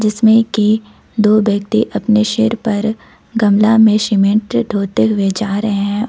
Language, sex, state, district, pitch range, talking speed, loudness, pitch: Hindi, female, Jharkhand, Ranchi, 205-220 Hz, 150 wpm, -14 LUFS, 215 Hz